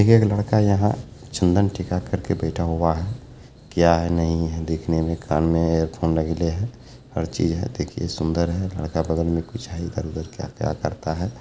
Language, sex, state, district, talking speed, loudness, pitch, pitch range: Maithili, male, Bihar, Begusarai, 185 wpm, -23 LUFS, 85 Hz, 80-100 Hz